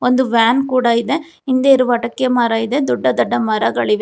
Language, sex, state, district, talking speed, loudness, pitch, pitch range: Kannada, female, Karnataka, Bangalore, 180 wpm, -15 LUFS, 240 Hz, 225-260 Hz